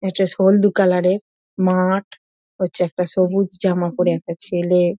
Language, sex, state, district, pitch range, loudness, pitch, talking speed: Bengali, female, West Bengal, North 24 Parganas, 180-190 Hz, -18 LUFS, 185 Hz, 145 wpm